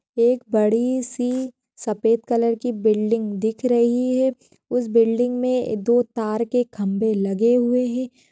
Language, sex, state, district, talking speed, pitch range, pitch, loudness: Hindi, female, Maharashtra, Chandrapur, 145 wpm, 225-250 Hz, 235 Hz, -21 LUFS